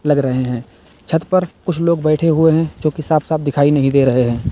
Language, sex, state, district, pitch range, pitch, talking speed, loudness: Hindi, male, Uttar Pradesh, Lalitpur, 130-160 Hz, 150 Hz, 240 wpm, -16 LUFS